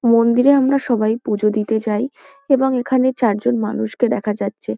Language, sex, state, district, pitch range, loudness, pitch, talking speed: Bengali, female, West Bengal, Kolkata, 215-260 Hz, -17 LUFS, 230 Hz, 150 wpm